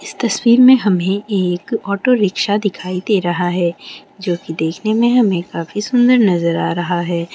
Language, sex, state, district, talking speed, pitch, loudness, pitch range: Maithili, female, Bihar, Saharsa, 180 wpm, 195 Hz, -16 LUFS, 175-225 Hz